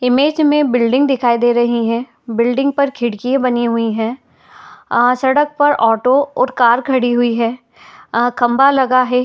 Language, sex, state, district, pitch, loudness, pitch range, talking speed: Hindi, female, Uttar Pradesh, Etah, 245 Hz, -14 LUFS, 235-270 Hz, 190 wpm